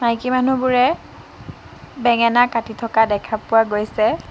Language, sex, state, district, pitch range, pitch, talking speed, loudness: Assamese, female, Assam, Sonitpur, 220-245 Hz, 230 Hz, 110 wpm, -18 LUFS